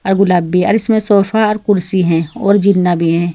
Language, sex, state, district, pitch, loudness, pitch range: Hindi, female, Uttar Pradesh, Saharanpur, 195 Hz, -13 LUFS, 175-210 Hz